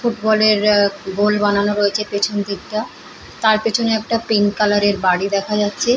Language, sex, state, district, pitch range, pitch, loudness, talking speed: Bengali, female, West Bengal, Paschim Medinipur, 205-215 Hz, 210 Hz, -17 LUFS, 150 wpm